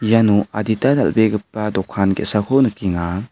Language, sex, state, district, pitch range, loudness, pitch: Garo, male, Meghalaya, West Garo Hills, 100-110 Hz, -18 LUFS, 105 Hz